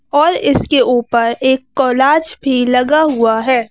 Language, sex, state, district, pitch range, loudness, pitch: Hindi, female, Madhya Pradesh, Bhopal, 245-280 Hz, -13 LUFS, 260 Hz